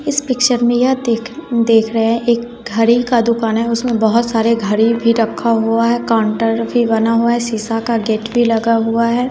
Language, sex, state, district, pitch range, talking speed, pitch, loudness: Hindi, female, Bihar, West Champaran, 225-240 Hz, 210 wpm, 230 Hz, -15 LUFS